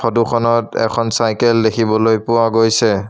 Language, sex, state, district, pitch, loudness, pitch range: Assamese, male, Assam, Sonitpur, 115 Hz, -15 LUFS, 110-115 Hz